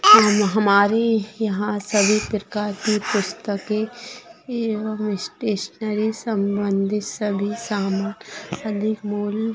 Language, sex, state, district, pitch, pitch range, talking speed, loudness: Hindi, female, Bihar, Begusarai, 210 Hz, 205-220 Hz, 65 wpm, -21 LUFS